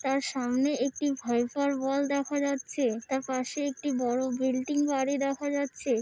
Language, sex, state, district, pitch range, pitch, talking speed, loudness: Bengali, female, West Bengal, Dakshin Dinajpur, 255-280 Hz, 270 Hz, 150 wpm, -29 LUFS